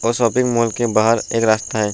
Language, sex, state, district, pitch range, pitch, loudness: Hindi, male, Uttar Pradesh, Budaun, 110-120 Hz, 115 Hz, -17 LUFS